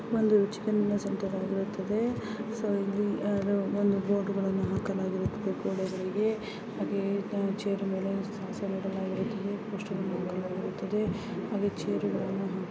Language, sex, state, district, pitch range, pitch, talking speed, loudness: Kannada, female, Karnataka, Mysore, 195-210 Hz, 200 Hz, 55 wpm, -31 LUFS